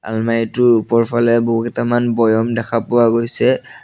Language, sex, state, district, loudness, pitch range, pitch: Assamese, male, Assam, Sonitpur, -15 LUFS, 115-120 Hz, 115 Hz